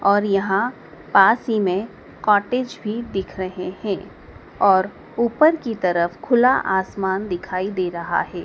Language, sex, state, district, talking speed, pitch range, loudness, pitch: Hindi, female, Madhya Pradesh, Dhar, 140 wpm, 185-230 Hz, -20 LUFS, 195 Hz